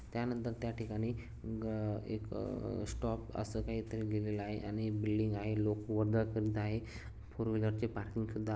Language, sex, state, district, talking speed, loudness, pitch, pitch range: Marathi, male, Maharashtra, Sindhudurg, 170 wpm, -38 LUFS, 110 Hz, 105-115 Hz